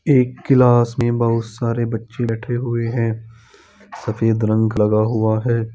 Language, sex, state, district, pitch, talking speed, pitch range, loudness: Hindi, male, Bihar, Bhagalpur, 115 Hz, 155 wpm, 110-120 Hz, -18 LUFS